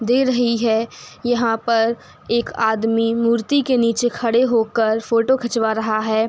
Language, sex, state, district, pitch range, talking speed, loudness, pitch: Hindi, female, Uttar Pradesh, Hamirpur, 225-240 Hz, 150 wpm, -18 LUFS, 230 Hz